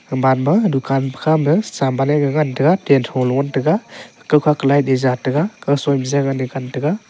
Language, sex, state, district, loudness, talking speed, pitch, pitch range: Wancho, male, Arunachal Pradesh, Longding, -17 LUFS, 185 wpm, 140 Hz, 135-150 Hz